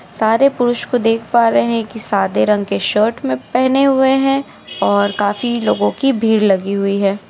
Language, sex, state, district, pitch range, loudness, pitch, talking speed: Hindi, female, Andhra Pradesh, Anantapur, 200-245 Hz, -15 LUFS, 225 Hz, 195 wpm